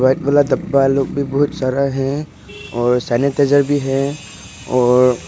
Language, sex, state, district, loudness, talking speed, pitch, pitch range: Hindi, male, Arunachal Pradesh, Papum Pare, -16 LUFS, 125 wpm, 135 Hz, 125-140 Hz